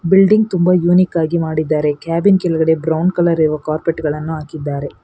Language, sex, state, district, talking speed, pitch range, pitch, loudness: Kannada, female, Karnataka, Bangalore, 155 wpm, 155-180 Hz, 165 Hz, -15 LUFS